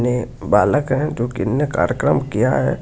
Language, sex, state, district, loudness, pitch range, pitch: Hindi, male, Maharashtra, Dhule, -18 LUFS, 105-140 Hz, 120 Hz